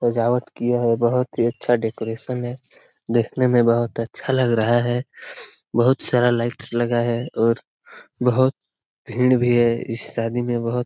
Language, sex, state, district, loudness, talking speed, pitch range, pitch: Hindi, male, Bihar, Jamui, -21 LUFS, 165 wpm, 115-125 Hz, 120 Hz